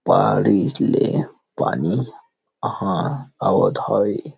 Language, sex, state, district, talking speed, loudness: Chhattisgarhi, male, Chhattisgarh, Rajnandgaon, 80 wpm, -20 LUFS